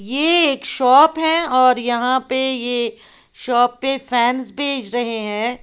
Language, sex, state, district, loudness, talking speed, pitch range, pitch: Hindi, female, Uttar Pradesh, Lalitpur, -16 LUFS, 150 wpm, 240-270 Hz, 255 Hz